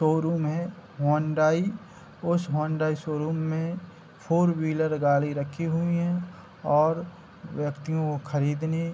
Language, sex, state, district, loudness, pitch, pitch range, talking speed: Hindi, male, Bihar, Darbhanga, -27 LUFS, 160 Hz, 150-170 Hz, 115 wpm